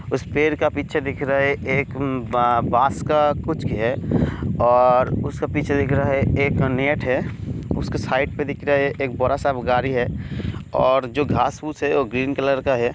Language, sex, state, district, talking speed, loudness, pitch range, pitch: Hindi, male, Bihar, Kishanganj, 195 wpm, -21 LUFS, 125-145 Hz, 135 Hz